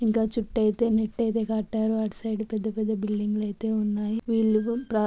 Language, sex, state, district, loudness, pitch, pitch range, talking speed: Telugu, female, Andhra Pradesh, Chittoor, -26 LUFS, 220 Hz, 215-225 Hz, 165 wpm